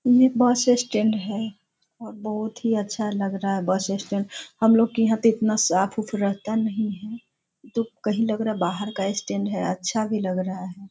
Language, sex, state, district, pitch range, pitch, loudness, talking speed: Hindi, female, Bihar, Sitamarhi, 195-225 Hz, 215 Hz, -24 LUFS, 205 wpm